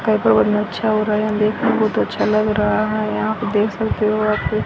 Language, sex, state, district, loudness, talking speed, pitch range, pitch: Hindi, female, Haryana, Rohtak, -18 LUFS, 230 wpm, 210-215 Hz, 215 Hz